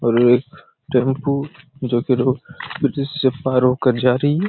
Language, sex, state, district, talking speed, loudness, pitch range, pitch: Hindi, male, Chhattisgarh, Raigarh, 175 wpm, -18 LUFS, 125-140 Hz, 130 Hz